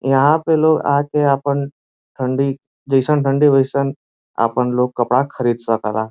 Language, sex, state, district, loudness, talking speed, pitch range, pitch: Bhojpuri, male, Uttar Pradesh, Varanasi, -17 LUFS, 140 wpm, 125-145 Hz, 135 Hz